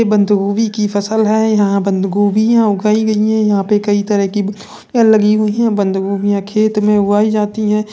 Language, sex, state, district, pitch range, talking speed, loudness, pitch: Hindi, male, Uttar Pradesh, Budaun, 205-215 Hz, 180 wpm, -14 LUFS, 210 Hz